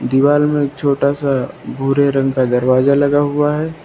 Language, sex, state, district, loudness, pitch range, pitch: Hindi, male, Uttar Pradesh, Lucknow, -15 LUFS, 135-145 Hz, 140 Hz